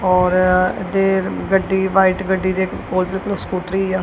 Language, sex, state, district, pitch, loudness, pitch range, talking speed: Punjabi, male, Punjab, Kapurthala, 190 Hz, -18 LUFS, 185-190 Hz, 165 wpm